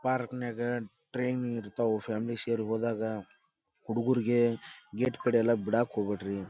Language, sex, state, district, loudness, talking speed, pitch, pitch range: Kannada, male, Karnataka, Dharwad, -31 LUFS, 110 wpm, 115 Hz, 110-120 Hz